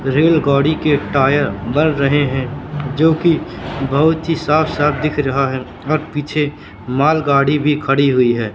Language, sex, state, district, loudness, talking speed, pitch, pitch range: Hindi, male, Madhya Pradesh, Katni, -16 LUFS, 145 wpm, 145 Hz, 135-155 Hz